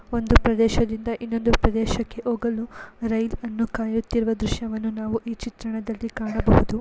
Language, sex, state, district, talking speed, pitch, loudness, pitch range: Kannada, male, Karnataka, Dharwad, 105 wpm, 225 Hz, -24 LUFS, 225-235 Hz